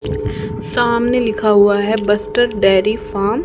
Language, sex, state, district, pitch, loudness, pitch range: Hindi, female, Haryana, Jhajjar, 215 Hz, -15 LUFS, 205-235 Hz